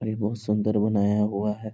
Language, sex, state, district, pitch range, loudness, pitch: Hindi, male, Bihar, Sitamarhi, 105-110 Hz, -25 LUFS, 105 Hz